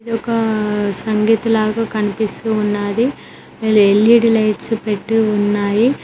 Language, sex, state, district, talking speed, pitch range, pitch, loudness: Telugu, female, Telangana, Mahabubabad, 100 wpm, 210-225 Hz, 220 Hz, -16 LUFS